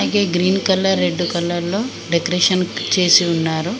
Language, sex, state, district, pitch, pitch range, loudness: Telugu, female, Telangana, Mahabubabad, 180 Hz, 175-190 Hz, -17 LUFS